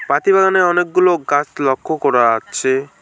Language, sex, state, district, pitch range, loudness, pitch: Bengali, male, West Bengal, Alipurduar, 135-180 Hz, -15 LUFS, 150 Hz